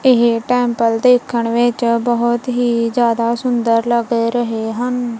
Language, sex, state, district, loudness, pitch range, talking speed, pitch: Punjabi, female, Punjab, Kapurthala, -16 LUFS, 230-245 Hz, 125 wpm, 235 Hz